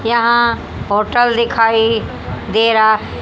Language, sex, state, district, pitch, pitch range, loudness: Hindi, female, Haryana, Jhajjar, 225 Hz, 220-235 Hz, -14 LUFS